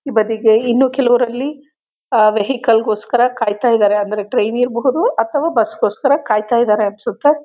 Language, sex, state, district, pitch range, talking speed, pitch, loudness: Kannada, female, Karnataka, Chamarajanagar, 215-275 Hz, 135 wpm, 240 Hz, -15 LUFS